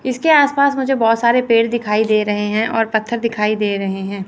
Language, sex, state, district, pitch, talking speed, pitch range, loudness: Hindi, female, Chandigarh, Chandigarh, 225 Hz, 225 wpm, 210-240 Hz, -16 LUFS